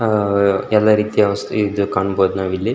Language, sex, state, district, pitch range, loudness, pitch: Kannada, male, Karnataka, Shimoga, 95-105 Hz, -17 LUFS, 100 Hz